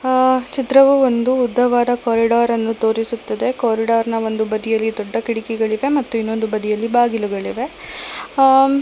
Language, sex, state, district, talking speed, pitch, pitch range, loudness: Kannada, female, Karnataka, Bangalore, 115 wpm, 235 Hz, 225-260 Hz, -17 LUFS